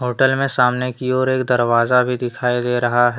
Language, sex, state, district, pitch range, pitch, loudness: Hindi, male, Jharkhand, Deoghar, 120-130 Hz, 125 Hz, -17 LUFS